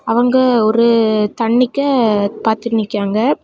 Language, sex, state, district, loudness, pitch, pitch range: Tamil, female, Tamil Nadu, Kanyakumari, -14 LUFS, 230 Hz, 215-245 Hz